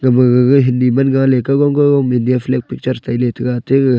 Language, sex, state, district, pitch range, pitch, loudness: Wancho, male, Arunachal Pradesh, Longding, 125-135 Hz, 125 Hz, -14 LUFS